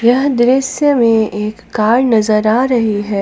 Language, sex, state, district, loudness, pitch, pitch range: Hindi, female, Jharkhand, Palamu, -13 LUFS, 230 Hz, 215-255 Hz